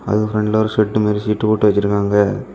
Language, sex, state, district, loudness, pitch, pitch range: Tamil, male, Tamil Nadu, Kanyakumari, -16 LUFS, 105 Hz, 105-110 Hz